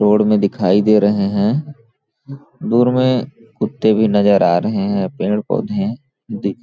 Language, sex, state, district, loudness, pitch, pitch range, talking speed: Hindi, male, Chhattisgarh, Balrampur, -16 LUFS, 110 Hz, 105-130 Hz, 155 wpm